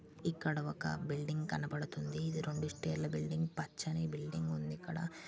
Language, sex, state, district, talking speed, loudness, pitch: Telugu, female, Andhra Pradesh, Srikakulam, 135 wpm, -40 LUFS, 150 Hz